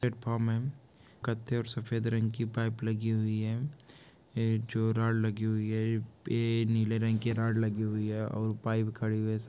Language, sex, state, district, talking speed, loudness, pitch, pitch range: Hindi, male, Chhattisgarh, Balrampur, 220 wpm, -32 LUFS, 115 Hz, 110-115 Hz